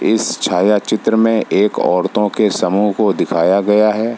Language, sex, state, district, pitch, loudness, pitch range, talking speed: Hindi, male, Bihar, Samastipur, 105 Hz, -14 LUFS, 100-110 Hz, 170 wpm